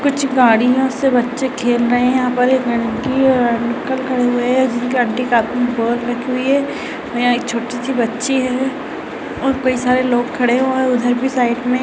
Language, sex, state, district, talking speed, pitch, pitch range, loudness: Hindi, female, Uttar Pradesh, Ghazipur, 235 wpm, 250 Hz, 245-260 Hz, -16 LUFS